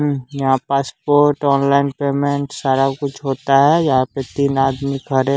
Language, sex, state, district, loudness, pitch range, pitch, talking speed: Hindi, male, Bihar, West Champaran, -17 LUFS, 135-140 Hz, 140 Hz, 155 wpm